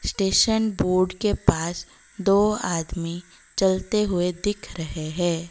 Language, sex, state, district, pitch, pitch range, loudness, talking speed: Hindi, female, Odisha, Malkangiri, 185 Hz, 170-205 Hz, -23 LUFS, 120 wpm